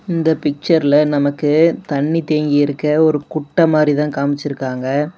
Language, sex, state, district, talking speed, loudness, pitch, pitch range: Tamil, male, Tamil Nadu, Namakkal, 140 wpm, -16 LUFS, 150 Hz, 145-160 Hz